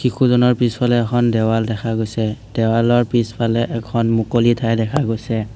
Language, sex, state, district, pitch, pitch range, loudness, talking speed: Assamese, male, Assam, Hailakandi, 115 Hz, 115-120 Hz, -17 LUFS, 140 wpm